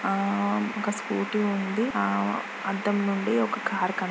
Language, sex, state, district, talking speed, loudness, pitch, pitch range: Telugu, female, Andhra Pradesh, Guntur, 115 wpm, -27 LUFS, 200 Hz, 195-210 Hz